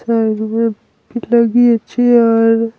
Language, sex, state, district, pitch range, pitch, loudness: Hindi, male, Bihar, Patna, 225-235 Hz, 230 Hz, -13 LUFS